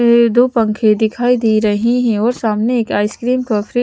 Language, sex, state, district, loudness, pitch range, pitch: Hindi, female, Chandigarh, Chandigarh, -14 LUFS, 215-245 Hz, 230 Hz